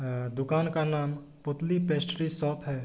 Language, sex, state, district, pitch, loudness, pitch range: Hindi, male, Bihar, Kishanganj, 150 Hz, -29 LUFS, 145-160 Hz